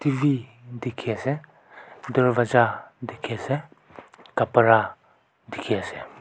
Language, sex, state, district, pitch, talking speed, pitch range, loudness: Nagamese, male, Nagaland, Kohima, 125 Hz, 85 wpm, 120-135 Hz, -24 LUFS